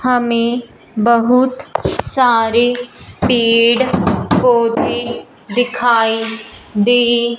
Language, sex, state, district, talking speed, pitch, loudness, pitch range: Hindi, male, Punjab, Fazilka, 55 wpm, 235 Hz, -14 LUFS, 230-245 Hz